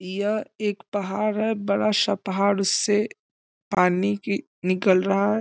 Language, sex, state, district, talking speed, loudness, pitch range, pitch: Hindi, male, Bihar, East Champaran, 145 wpm, -23 LUFS, 195-210 Hz, 200 Hz